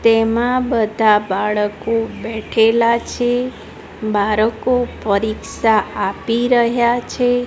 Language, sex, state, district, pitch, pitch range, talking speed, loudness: Gujarati, female, Gujarat, Gandhinagar, 230 Hz, 215-240 Hz, 80 wpm, -17 LUFS